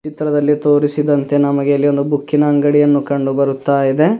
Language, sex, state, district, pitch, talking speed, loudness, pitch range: Kannada, male, Karnataka, Bidar, 145 Hz, 170 wpm, -14 LUFS, 140-150 Hz